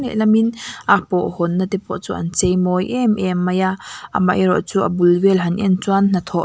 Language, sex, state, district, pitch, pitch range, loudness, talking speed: Mizo, female, Mizoram, Aizawl, 185 Hz, 180-200 Hz, -17 LUFS, 235 wpm